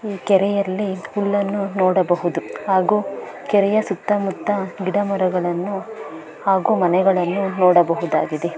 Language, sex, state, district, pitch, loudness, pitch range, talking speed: Kannada, female, Karnataka, Bangalore, 190 Hz, -19 LUFS, 175-200 Hz, 75 wpm